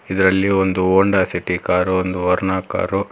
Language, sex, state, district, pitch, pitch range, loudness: Kannada, male, Karnataka, Bangalore, 95 Hz, 90-95 Hz, -18 LUFS